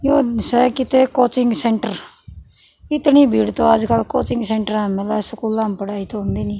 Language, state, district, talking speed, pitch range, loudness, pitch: Haryanvi, Haryana, Rohtak, 190 wpm, 210-250 Hz, -17 LUFS, 225 Hz